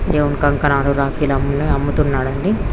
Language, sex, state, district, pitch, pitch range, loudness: Telugu, female, Andhra Pradesh, Krishna, 145 Hz, 140-150 Hz, -17 LUFS